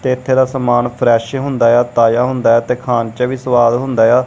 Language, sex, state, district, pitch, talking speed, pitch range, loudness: Punjabi, male, Punjab, Kapurthala, 125 Hz, 240 wpm, 115-130 Hz, -13 LUFS